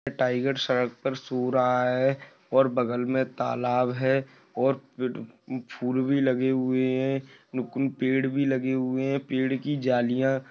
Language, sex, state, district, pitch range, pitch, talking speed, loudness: Hindi, male, Maharashtra, Dhule, 125-135 Hz, 130 Hz, 145 wpm, -26 LUFS